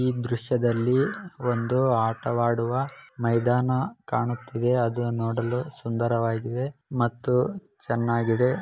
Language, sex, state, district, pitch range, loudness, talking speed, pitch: Kannada, male, Karnataka, Bellary, 115-130 Hz, -26 LUFS, 75 wpm, 120 Hz